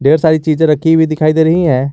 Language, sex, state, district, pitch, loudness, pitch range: Hindi, male, Jharkhand, Garhwa, 160 Hz, -11 LUFS, 155-160 Hz